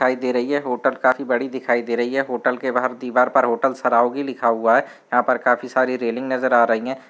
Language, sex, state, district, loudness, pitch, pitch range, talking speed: Hindi, male, Bihar, Gaya, -20 LUFS, 125 Hz, 120-130 Hz, 255 wpm